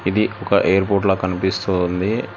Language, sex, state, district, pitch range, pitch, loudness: Telugu, male, Telangana, Hyderabad, 95-100 Hz, 95 Hz, -19 LUFS